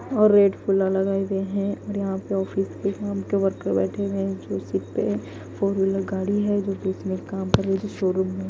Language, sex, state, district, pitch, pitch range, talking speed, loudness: Hindi, female, Punjab, Kapurthala, 195 Hz, 190-200 Hz, 240 wpm, -24 LUFS